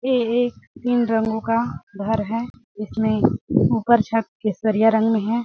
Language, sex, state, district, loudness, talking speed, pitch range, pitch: Hindi, female, Chhattisgarh, Sarguja, -21 LUFS, 165 wpm, 220-235 Hz, 225 Hz